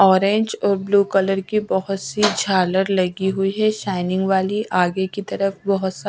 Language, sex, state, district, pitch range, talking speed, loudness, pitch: Hindi, female, Bihar, West Champaran, 190-200 Hz, 185 wpm, -20 LUFS, 195 Hz